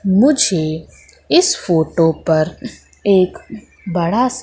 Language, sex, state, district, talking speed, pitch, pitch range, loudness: Hindi, female, Madhya Pradesh, Katni, 80 wpm, 185 Hz, 165-245 Hz, -15 LUFS